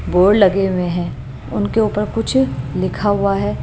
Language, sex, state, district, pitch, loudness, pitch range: Hindi, female, Maharashtra, Mumbai Suburban, 185 Hz, -17 LUFS, 130-200 Hz